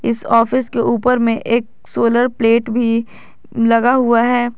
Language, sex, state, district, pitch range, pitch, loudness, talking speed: Hindi, female, Jharkhand, Garhwa, 230-245 Hz, 235 Hz, -15 LUFS, 155 wpm